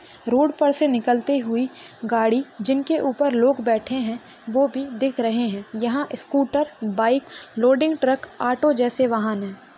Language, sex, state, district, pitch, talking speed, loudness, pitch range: Hindi, female, Maharashtra, Solapur, 255 Hz, 155 wpm, -22 LUFS, 230-280 Hz